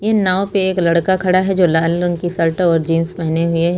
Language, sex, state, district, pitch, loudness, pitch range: Hindi, female, Uttar Pradesh, Lucknow, 175 Hz, -16 LUFS, 165-185 Hz